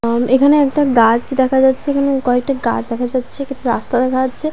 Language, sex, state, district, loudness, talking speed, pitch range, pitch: Bengali, female, West Bengal, Paschim Medinipur, -15 LUFS, 200 wpm, 245-275 Hz, 260 Hz